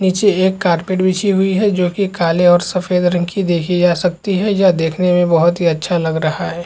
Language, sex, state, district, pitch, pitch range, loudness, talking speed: Hindi, male, Chhattisgarh, Balrampur, 180 Hz, 175-190 Hz, -15 LUFS, 235 wpm